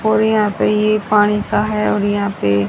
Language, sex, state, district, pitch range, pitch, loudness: Hindi, female, Haryana, Rohtak, 205-215 Hz, 210 Hz, -16 LUFS